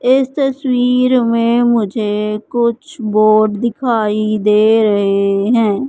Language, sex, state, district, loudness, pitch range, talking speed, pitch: Hindi, male, Madhya Pradesh, Katni, -14 LUFS, 210-245 Hz, 100 wpm, 225 Hz